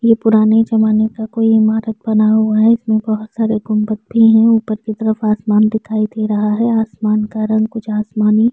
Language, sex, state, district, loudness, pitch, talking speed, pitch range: Hindi, female, Uttar Pradesh, Etah, -14 LUFS, 220 Hz, 205 wpm, 215-225 Hz